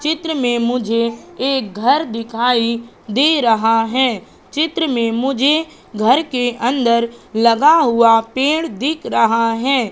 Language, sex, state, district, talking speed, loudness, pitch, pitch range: Hindi, female, Madhya Pradesh, Katni, 125 wpm, -16 LUFS, 245 Hz, 230-275 Hz